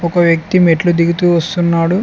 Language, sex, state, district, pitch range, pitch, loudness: Telugu, male, Telangana, Mahabubabad, 170-175 Hz, 170 Hz, -13 LUFS